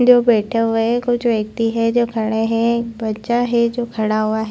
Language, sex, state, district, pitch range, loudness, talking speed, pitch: Hindi, female, Chhattisgarh, Bilaspur, 220-235 Hz, -18 LUFS, 215 wpm, 230 Hz